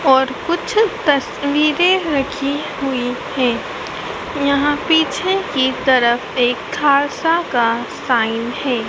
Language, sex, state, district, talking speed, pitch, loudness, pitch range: Hindi, female, Madhya Pradesh, Dhar, 100 wpm, 280 Hz, -17 LUFS, 250-305 Hz